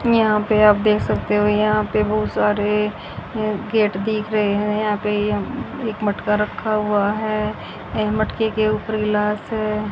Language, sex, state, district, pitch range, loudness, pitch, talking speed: Hindi, female, Haryana, Rohtak, 210-215 Hz, -20 LUFS, 210 Hz, 170 wpm